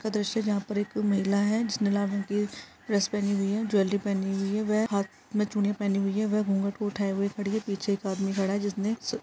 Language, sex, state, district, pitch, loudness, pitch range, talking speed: Hindi, female, Jharkhand, Sahebganj, 205 Hz, -28 LUFS, 200-210 Hz, 260 wpm